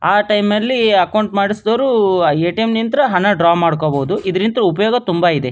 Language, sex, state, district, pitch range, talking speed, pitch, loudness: Kannada, male, Karnataka, Dharwad, 175-220 Hz, 150 wpm, 205 Hz, -15 LUFS